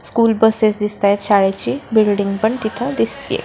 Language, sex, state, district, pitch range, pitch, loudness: Marathi, female, Maharashtra, Solapur, 200-225 Hz, 215 Hz, -16 LUFS